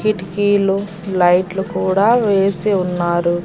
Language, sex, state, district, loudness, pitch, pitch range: Telugu, female, Andhra Pradesh, Annamaya, -16 LUFS, 195 Hz, 180-205 Hz